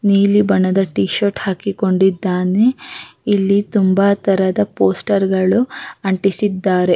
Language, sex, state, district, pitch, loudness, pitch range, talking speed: Kannada, female, Karnataka, Raichur, 195 Hz, -16 LUFS, 185-205 Hz, 110 wpm